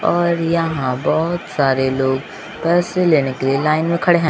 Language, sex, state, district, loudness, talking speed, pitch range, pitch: Hindi, male, Bihar, Kaimur, -17 LUFS, 180 wpm, 135-170 Hz, 160 Hz